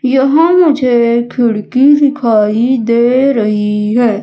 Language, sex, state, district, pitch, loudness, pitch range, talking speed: Hindi, female, Madhya Pradesh, Umaria, 240 Hz, -11 LUFS, 220-265 Hz, 100 wpm